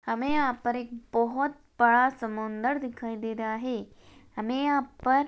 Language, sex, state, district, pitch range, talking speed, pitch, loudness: Hindi, female, Maharashtra, Chandrapur, 230-270 Hz, 160 wpm, 245 Hz, -28 LUFS